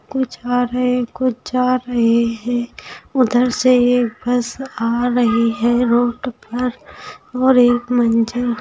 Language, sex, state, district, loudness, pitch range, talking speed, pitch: Hindi, female, Bihar, Saran, -17 LUFS, 240-250 Hz, 145 wpm, 245 Hz